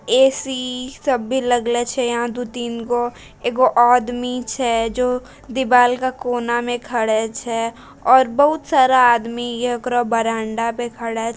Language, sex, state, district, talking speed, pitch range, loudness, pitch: Hindi, female, Bihar, Bhagalpur, 135 wpm, 235-255 Hz, -19 LUFS, 245 Hz